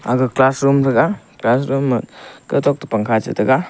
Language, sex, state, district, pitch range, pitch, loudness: Wancho, male, Arunachal Pradesh, Longding, 115-140 Hz, 130 Hz, -17 LUFS